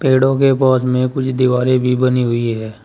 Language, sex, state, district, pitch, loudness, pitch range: Hindi, male, Uttar Pradesh, Saharanpur, 130 Hz, -15 LUFS, 125-130 Hz